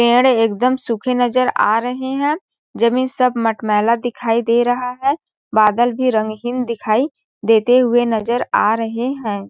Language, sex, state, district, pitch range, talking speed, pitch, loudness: Hindi, female, Chhattisgarh, Balrampur, 225-255 Hz, 160 wpm, 240 Hz, -17 LUFS